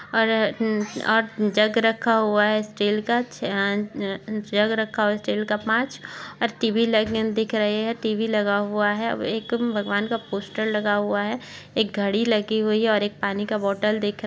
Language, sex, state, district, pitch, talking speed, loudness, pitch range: Hindi, female, Chhattisgarh, Jashpur, 215 Hz, 200 wpm, -23 LUFS, 210-225 Hz